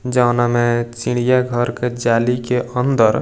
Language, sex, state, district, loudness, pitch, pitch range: Bhojpuri, male, Bihar, East Champaran, -17 LUFS, 120 Hz, 120-125 Hz